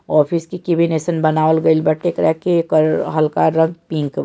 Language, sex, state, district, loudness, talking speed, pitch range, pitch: Bhojpuri, male, Bihar, Saran, -16 LUFS, 200 wpm, 155-170 Hz, 160 Hz